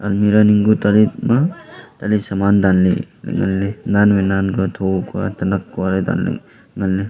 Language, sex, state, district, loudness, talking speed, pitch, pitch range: Wancho, male, Arunachal Pradesh, Longding, -17 LUFS, 185 wpm, 100 Hz, 95-105 Hz